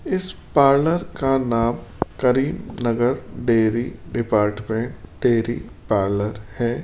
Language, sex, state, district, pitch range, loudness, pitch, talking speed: Hindi, male, Rajasthan, Jaipur, 110-130 Hz, -21 LUFS, 120 Hz, 90 wpm